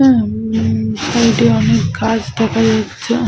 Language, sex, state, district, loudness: Bengali, female, Jharkhand, Sahebganj, -15 LUFS